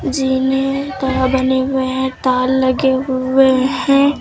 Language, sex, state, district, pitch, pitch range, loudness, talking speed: Hindi, female, Uttar Pradesh, Lucknow, 265 Hz, 260-270 Hz, -15 LUFS, 130 wpm